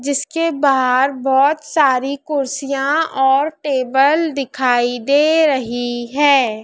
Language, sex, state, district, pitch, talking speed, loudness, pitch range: Hindi, female, Madhya Pradesh, Dhar, 275 Hz, 100 wpm, -16 LUFS, 260-295 Hz